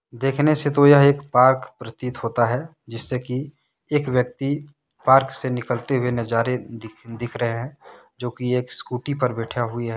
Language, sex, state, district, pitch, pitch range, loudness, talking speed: Hindi, male, Jharkhand, Deoghar, 125 Hz, 120-140 Hz, -21 LUFS, 180 wpm